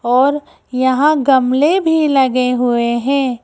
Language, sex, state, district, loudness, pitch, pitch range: Hindi, female, Madhya Pradesh, Bhopal, -14 LUFS, 260 Hz, 250-285 Hz